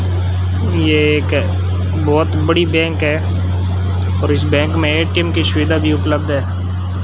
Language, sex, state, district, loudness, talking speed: Hindi, male, Rajasthan, Bikaner, -15 LUFS, 135 wpm